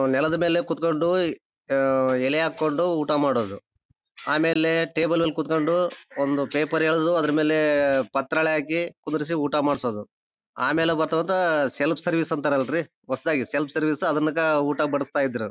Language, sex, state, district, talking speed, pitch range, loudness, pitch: Kannada, male, Karnataka, Bellary, 140 wpm, 145-165 Hz, -23 LUFS, 155 Hz